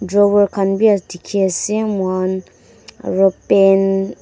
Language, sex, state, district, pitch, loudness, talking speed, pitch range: Nagamese, female, Nagaland, Dimapur, 195 Hz, -16 LUFS, 140 wpm, 190-205 Hz